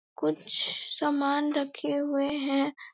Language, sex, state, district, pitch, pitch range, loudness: Hindi, female, Chhattisgarh, Bastar, 285 Hz, 275-290 Hz, -29 LUFS